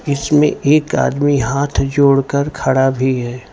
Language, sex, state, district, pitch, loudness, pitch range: Hindi, male, Gujarat, Valsad, 140 Hz, -15 LUFS, 130-145 Hz